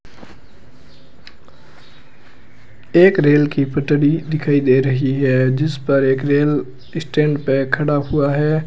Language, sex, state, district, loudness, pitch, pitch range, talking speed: Hindi, male, Rajasthan, Bikaner, -16 LUFS, 145 Hz, 135-150 Hz, 120 wpm